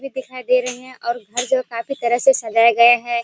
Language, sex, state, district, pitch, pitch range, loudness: Hindi, female, Bihar, Kishanganj, 245 Hz, 235-255 Hz, -17 LUFS